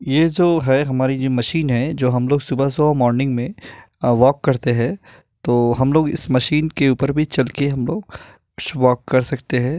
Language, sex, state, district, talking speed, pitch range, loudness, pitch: Hindi, male, Bihar, Purnia, 195 wpm, 125-150 Hz, -18 LUFS, 135 Hz